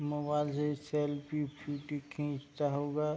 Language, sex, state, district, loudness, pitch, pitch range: Hindi, male, Uttar Pradesh, Jalaun, -36 LUFS, 145 Hz, 145-150 Hz